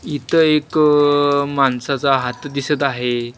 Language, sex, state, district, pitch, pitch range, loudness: Marathi, male, Maharashtra, Washim, 140 Hz, 135-145 Hz, -17 LUFS